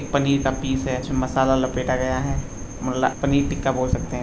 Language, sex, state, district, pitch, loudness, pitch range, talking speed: Hindi, male, Bihar, Madhepura, 130 Hz, -23 LUFS, 130-140 Hz, 225 wpm